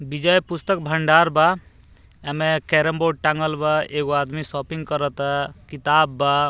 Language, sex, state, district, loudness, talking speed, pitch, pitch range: Bhojpuri, male, Bihar, Muzaffarpur, -20 LUFS, 140 wpm, 155 Hz, 145-160 Hz